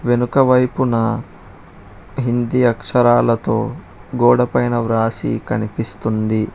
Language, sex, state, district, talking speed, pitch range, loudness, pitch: Telugu, male, Telangana, Hyderabad, 75 wpm, 110-120 Hz, -17 LUFS, 120 Hz